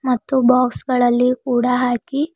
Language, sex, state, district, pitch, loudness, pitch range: Kannada, female, Karnataka, Bidar, 250 Hz, -17 LUFS, 245-260 Hz